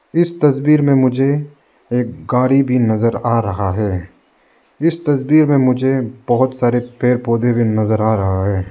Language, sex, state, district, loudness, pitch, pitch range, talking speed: Hindi, male, Arunachal Pradesh, Lower Dibang Valley, -16 LUFS, 125 Hz, 115-140 Hz, 165 wpm